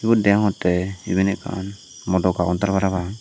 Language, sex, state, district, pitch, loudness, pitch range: Chakma, male, Tripura, Dhalai, 95 Hz, -21 LUFS, 90-100 Hz